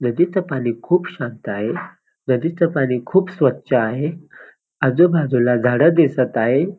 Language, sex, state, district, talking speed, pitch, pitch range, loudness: Marathi, male, Maharashtra, Dhule, 125 wpm, 135 Hz, 125-170 Hz, -18 LUFS